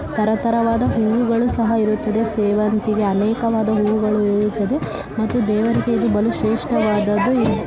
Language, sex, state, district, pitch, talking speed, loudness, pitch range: Kannada, male, Karnataka, Raichur, 220 Hz, 110 wpm, -18 LUFS, 210-230 Hz